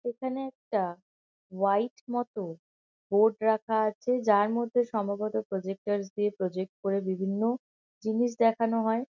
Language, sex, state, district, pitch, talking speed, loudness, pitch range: Bengali, female, West Bengal, Kolkata, 215 Hz, 120 wpm, -29 LUFS, 200-235 Hz